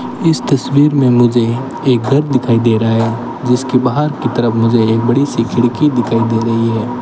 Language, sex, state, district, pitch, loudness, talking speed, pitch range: Hindi, male, Rajasthan, Bikaner, 120 Hz, -13 LUFS, 195 wpm, 115-135 Hz